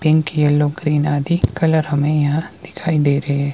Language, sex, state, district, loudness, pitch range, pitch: Hindi, male, Himachal Pradesh, Shimla, -17 LUFS, 145-160 Hz, 150 Hz